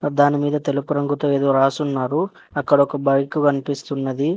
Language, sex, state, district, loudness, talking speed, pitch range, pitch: Telugu, male, Telangana, Hyderabad, -20 LUFS, 135 wpm, 140-145 Hz, 145 Hz